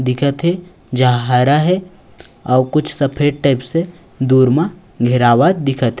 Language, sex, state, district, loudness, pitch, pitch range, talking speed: Chhattisgarhi, male, Chhattisgarh, Raigarh, -15 LUFS, 140 Hz, 125-170 Hz, 140 wpm